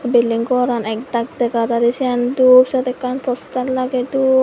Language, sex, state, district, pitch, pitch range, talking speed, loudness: Chakma, female, Tripura, Dhalai, 250 Hz, 235-255 Hz, 165 wpm, -17 LUFS